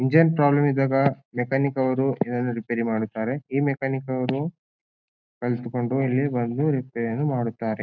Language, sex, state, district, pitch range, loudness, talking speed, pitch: Kannada, male, Karnataka, Bijapur, 120-140 Hz, -24 LUFS, 120 wpm, 130 Hz